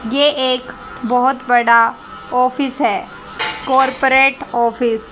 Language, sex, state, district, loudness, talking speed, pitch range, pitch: Hindi, female, Haryana, Rohtak, -15 LUFS, 105 wpm, 240-270 Hz, 255 Hz